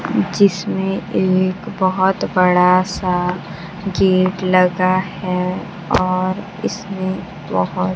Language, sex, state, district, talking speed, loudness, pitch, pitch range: Hindi, female, Bihar, Kaimur, 90 wpm, -18 LUFS, 185 Hz, 180-190 Hz